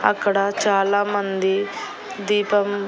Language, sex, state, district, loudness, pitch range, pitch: Telugu, female, Andhra Pradesh, Annamaya, -21 LUFS, 195-205 Hz, 200 Hz